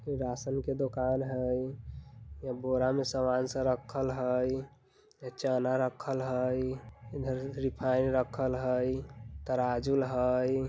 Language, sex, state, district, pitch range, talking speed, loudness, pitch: Bajjika, male, Bihar, Vaishali, 125-135 Hz, 110 wpm, -32 LUFS, 130 Hz